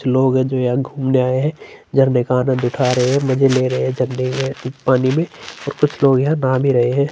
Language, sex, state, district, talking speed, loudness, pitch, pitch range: Hindi, male, Chhattisgarh, Sukma, 255 wpm, -17 LUFS, 130 Hz, 130-135 Hz